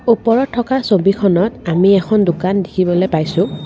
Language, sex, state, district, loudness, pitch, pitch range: Assamese, female, Assam, Kamrup Metropolitan, -15 LUFS, 195 Hz, 180-225 Hz